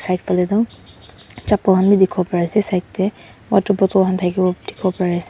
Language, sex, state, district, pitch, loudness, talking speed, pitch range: Nagamese, female, Mizoram, Aizawl, 185 Hz, -18 LUFS, 205 wpm, 180-195 Hz